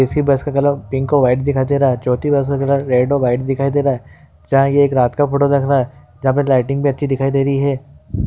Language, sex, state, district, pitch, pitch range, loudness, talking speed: Hindi, male, Uttar Pradesh, Deoria, 135 Hz, 130-140 Hz, -16 LUFS, 270 wpm